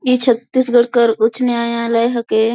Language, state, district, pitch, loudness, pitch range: Kurukh, Chhattisgarh, Jashpur, 235 Hz, -15 LUFS, 230-245 Hz